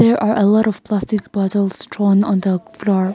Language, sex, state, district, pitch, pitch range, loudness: English, female, Nagaland, Kohima, 205 Hz, 195-215 Hz, -17 LUFS